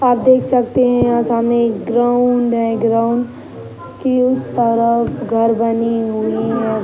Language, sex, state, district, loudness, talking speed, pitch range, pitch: Hindi, female, Uttar Pradesh, Gorakhpur, -15 LUFS, 140 wpm, 230-245 Hz, 235 Hz